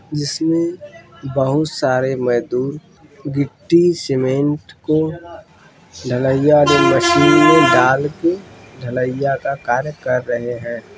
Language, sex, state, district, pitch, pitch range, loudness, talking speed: Hindi, male, Uttar Pradesh, Varanasi, 145 Hz, 130-165 Hz, -16 LUFS, 100 wpm